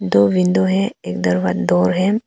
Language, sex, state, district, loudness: Hindi, female, Arunachal Pradesh, Papum Pare, -17 LUFS